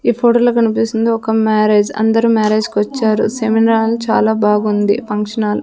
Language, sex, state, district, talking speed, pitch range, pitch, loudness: Telugu, female, Andhra Pradesh, Sri Satya Sai, 170 wpm, 215-230 Hz, 220 Hz, -14 LUFS